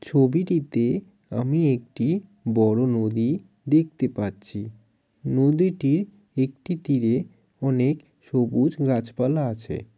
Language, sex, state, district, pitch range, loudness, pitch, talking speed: Bengali, male, West Bengal, Jalpaiguri, 115-155 Hz, -24 LUFS, 130 Hz, 85 wpm